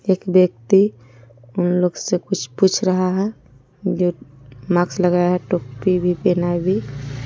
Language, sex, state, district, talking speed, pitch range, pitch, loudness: Hindi, female, Jharkhand, Palamu, 150 wpm, 130-185 Hz, 180 Hz, -19 LUFS